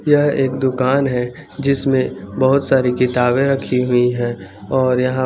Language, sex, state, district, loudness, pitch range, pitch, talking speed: Hindi, male, Chandigarh, Chandigarh, -17 LUFS, 125-135 Hz, 130 Hz, 160 wpm